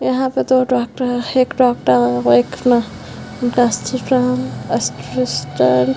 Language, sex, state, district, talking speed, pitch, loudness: Hindi, female, Bihar, Vaishali, 80 wpm, 240 Hz, -16 LUFS